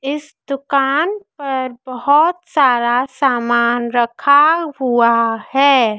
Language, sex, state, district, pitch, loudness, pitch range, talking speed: Hindi, female, Madhya Pradesh, Dhar, 270 Hz, -15 LUFS, 240-290 Hz, 90 wpm